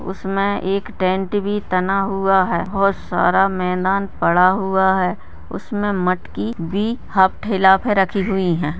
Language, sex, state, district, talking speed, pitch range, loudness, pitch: Hindi, male, Rajasthan, Nagaur, 145 wpm, 185-195 Hz, -18 LUFS, 195 Hz